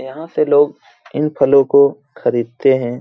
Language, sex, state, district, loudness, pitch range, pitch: Hindi, male, Jharkhand, Jamtara, -15 LUFS, 130-145 Hz, 140 Hz